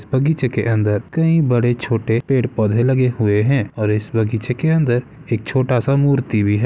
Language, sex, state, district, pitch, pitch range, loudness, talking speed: Hindi, male, Bihar, Samastipur, 120 Hz, 110-135 Hz, -17 LUFS, 180 wpm